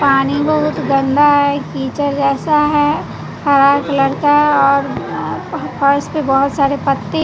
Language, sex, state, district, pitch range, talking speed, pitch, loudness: Hindi, female, Bihar, West Champaran, 275-295 Hz, 135 wpm, 280 Hz, -14 LUFS